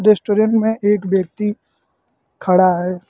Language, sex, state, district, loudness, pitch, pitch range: Hindi, male, Uttar Pradesh, Lucknow, -17 LUFS, 205 Hz, 185-215 Hz